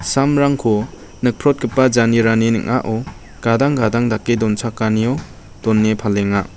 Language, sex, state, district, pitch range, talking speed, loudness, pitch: Garo, male, Meghalaya, West Garo Hills, 110-125 Hz, 90 wpm, -17 LUFS, 115 Hz